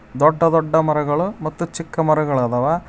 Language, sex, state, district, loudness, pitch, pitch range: Kannada, male, Karnataka, Koppal, -19 LUFS, 155 Hz, 145-165 Hz